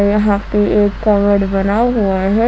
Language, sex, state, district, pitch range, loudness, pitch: Hindi, female, Jharkhand, Ranchi, 200-210 Hz, -14 LUFS, 205 Hz